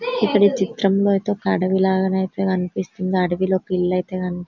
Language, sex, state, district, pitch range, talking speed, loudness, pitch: Telugu, female, Telangana, Karimnagar, 185-195 Hz, 175 wpm, -20 LUFS, 190 Hz